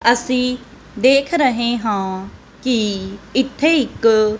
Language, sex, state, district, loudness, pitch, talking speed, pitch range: Punjabi, female, Punjab, Kapurthala, -17 LUFS, 240 Hz, 95 wpm, 215-260 Hz